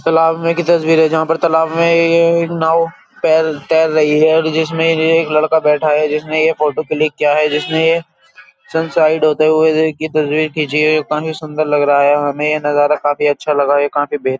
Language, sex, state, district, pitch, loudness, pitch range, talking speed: Hindi, male, Uttar Pradesh, Jyotiba Phule Nagar, 155 Hz, -14 LUFS, 150-160 Hz, 215 wpm